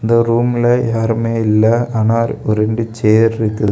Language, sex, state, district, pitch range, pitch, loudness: Tamil, male, Tamil Nadu, Kanyakumari, 110-115 Hz, 115 Hz, -14 LUFS